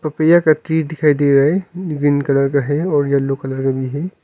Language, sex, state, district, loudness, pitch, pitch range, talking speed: Hindi, male, Arunachal Pradesh, Longding, -16 LUFS, 145 Hz, 140-160 Hz, 240 wpm